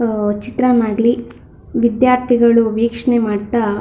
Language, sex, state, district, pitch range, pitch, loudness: Kannada, female, Karnataka, Shimoga, 220-240 Hz, 235 Hz, -15 LUFS